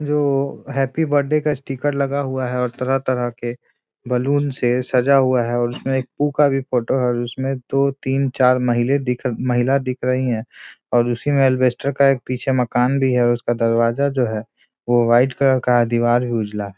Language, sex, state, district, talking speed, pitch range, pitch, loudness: Hindi, male, Bihar, Muzaffarpur, 205 wpm, 120-135 Hz, 130 Hz, -19 LUFS